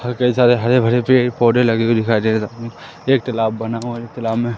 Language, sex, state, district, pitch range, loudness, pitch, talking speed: Hindi, male, Madhya Pradesh, Katni, 115-125 Hz, -17 LUFS, 120 Hz, 250 wpm